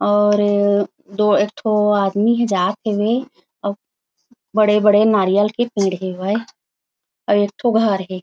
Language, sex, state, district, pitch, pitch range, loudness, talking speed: Chhattisgarhi, female, Chhattisgarh, Raigarh, 205 Hz, 200-220 Hz, -17 LUFS, 140 wpm